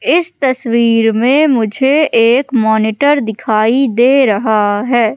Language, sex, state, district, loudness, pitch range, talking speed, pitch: Hindi, female, Madhya Pradesh, Katni, -12 LUFS, 220-270 Hz, 115 wpm, 235 Hz